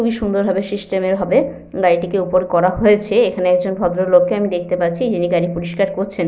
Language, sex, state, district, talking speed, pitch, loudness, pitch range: Bengali, female, West Bengal, Jhargram, 190 wpm, 185 Hz, -17 LUFS, 180-195 Hz